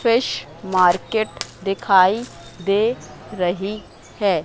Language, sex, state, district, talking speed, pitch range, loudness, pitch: Hindi, female, Madhya Pradesh, Katni, 80 wpm, 180-215 Hz, -20 LUFS, 195 Hz